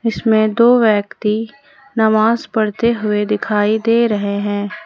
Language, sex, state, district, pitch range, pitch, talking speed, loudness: Hindi, female, Jharkhand, Ranchi, 210-230 Hz, 220 Hz, 135 wpm, -15 LUFS